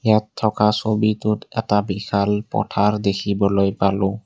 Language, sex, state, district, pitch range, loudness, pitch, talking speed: Assamese, male, Assam, Kamrup Metropolitan, 100-110 Hz, -20 LUFS, 105 Hz, 115 wpm